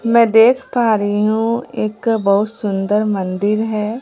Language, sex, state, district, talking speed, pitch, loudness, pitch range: Hindi, female, Bihar, Katihar, 150 wpm, 215 Hz, -16 LUFS, 205-230 Hz